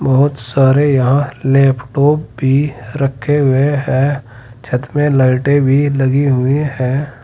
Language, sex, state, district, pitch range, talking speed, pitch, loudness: Hindi, male, Uttar Pradesh, Saharanpur, 130-145 Hz, 125 wpm, 135 Hz, -14 LUFS